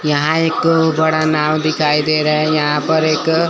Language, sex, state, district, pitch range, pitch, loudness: Hindi, male, Chandigarh, Chandigarh, 150-160 Hz, 155 Hz, -15 LUFS